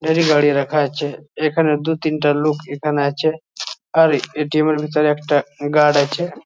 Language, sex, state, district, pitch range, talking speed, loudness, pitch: Bengali, male, West Bengal, Jhargram, 145-155 Hz, 160 wpm, -18 LUFS, 150 Hz